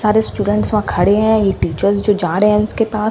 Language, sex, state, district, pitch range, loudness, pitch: Hindi, female, Bihar, Katihar, 200-215 Hz, -15 LUFS, 210 Hz